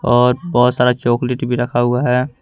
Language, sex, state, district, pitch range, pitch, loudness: Hindi, male, Jharkhand, Ranchi, 120-125 Hz, 125 Hz, -16 LUFS